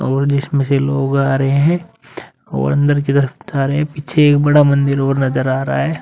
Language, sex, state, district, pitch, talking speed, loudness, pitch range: Hindi, male, Uttar Pradesh, Muzaffarnagar, 140 Hz, 200 wpm, -15 LUFS, 135-145 Hz